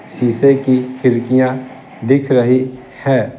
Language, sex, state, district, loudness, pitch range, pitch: Hindi, male, Bihar, Patna, -14 LUFS, 125-130 Hz, 130 Hz